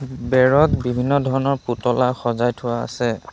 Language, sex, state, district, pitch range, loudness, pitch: Assamese, male, Assam, Sonitpur, 120-135 Hz, -19 LUFS, 125 Hz